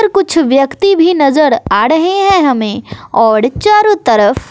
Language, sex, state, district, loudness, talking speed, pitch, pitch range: Hindi, female, Bihar, West Champaran, -10 LUFS, 145 wpm, 315 Hz, 250-390 Hz